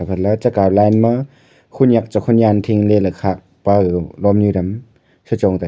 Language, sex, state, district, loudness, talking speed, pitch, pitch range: Wancho, male, Arunachal Pradesh, Longding, -15 LUFS, 170 wpm, 105 Hz, 95-115 Hz